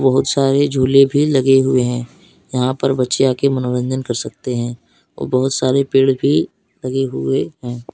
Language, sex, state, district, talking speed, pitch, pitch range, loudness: Hindi, male, Jharkhand, Deoghar, 180 wpm, 130 Hz, 125-135 Hz, -16 LUFS